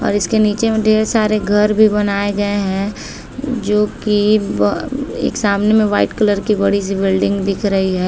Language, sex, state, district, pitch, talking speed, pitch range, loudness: Hindi, female, Bihar, Saharsa, 205 Hz, 185 wpm, 200-215 Hz, -15 LUFS